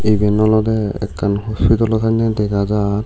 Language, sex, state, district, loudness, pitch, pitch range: Chakma, male, Tripura, West Tripura, -16 LUFS, 105 Hz, 100-110 Hz